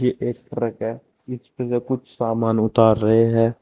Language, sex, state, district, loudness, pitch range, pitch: Hindi, male, Uttar Pradesh, Saharanpur, -20 LUFS, 115-125 Hz, 115 Hz